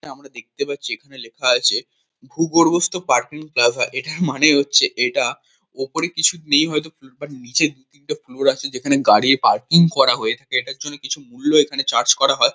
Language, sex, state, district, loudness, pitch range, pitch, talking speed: Bengali, male, West Bengal, Kolkata, -18 LUFS, 135-165 Hz, 145 Hz, 180 wpm